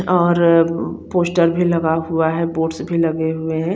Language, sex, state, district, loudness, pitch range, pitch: Hindi, female, Chandigarh, Chandigarh, -17 LUFS, 160-175 Hz, 165 Hz